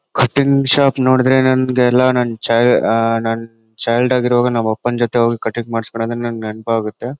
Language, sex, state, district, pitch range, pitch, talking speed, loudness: Kannada, male, Karnataka, Bellary, 115-130 Hz, 120 Hz, 160 wpm, -15 LUFS